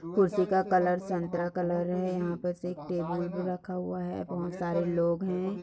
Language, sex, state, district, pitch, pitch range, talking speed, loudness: Hindi, female, Bihar, Bhagalpur, 180 Hz, 175-185 Hz, 190 wpm, -30 LUFS